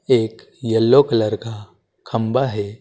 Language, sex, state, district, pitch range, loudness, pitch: Hindi, male, Madhya Pradesh, Dhar, 110-115 Hz, -18 LUFS, 115 Hz